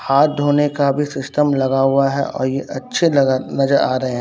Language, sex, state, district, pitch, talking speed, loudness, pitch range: Hindi, male, Bihar, Katihar, 140 Hz, 215 wpm, -17 LUFS, 135-145 Hz